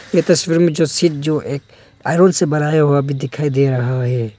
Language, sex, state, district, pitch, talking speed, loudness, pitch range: Hindi, male, Arunachal Pradesh, Longding, 145 Hz, 205 wpm, -16 LUFS, 130-165 Hz